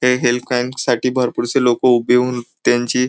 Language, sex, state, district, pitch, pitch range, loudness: Marathi, male, Maharashtra, Nagpur, 125 Hz, 120-125 Hz, -17 LUFS